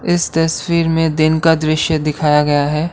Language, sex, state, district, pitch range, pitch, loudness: Hindi, male, Assam, Kamrup Metropolitan, 155-165 Hz, 160 Hz, -15 LUFS